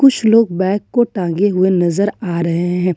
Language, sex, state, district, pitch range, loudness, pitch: Hindi, female, Jharkhand, Ranchi, 180-215 Hz, -15 LUFS, 190 Hz